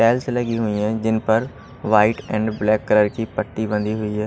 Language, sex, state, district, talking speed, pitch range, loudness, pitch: Hindi, male, Odisha, Malkangiri, 210 wpm, 105-115 Hz, -20 LUFS, 110 Hz